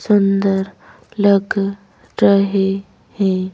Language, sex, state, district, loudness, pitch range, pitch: Hindi, female, Madhya Pradesh, Bhopal, -17 LUFS, 195-200 Hz, 195 Hz